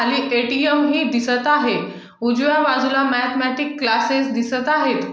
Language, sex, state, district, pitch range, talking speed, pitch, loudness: Marathi, female, Maharashtra, Aurangabad, 240-295 Hz, 130 wpm, 255 Hz, -18 LUFS